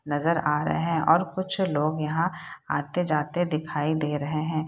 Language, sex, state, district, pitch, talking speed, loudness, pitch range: Hindi, female, Bihar, Saharsa, 155 Hz, 165 wpm, -26 LUFS, 150-170 Hz